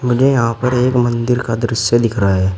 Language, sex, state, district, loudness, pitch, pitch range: Hindi, male, Uttar Pradesh, Shamli, -15 LUFS, 120 Hz, 115-125 Hz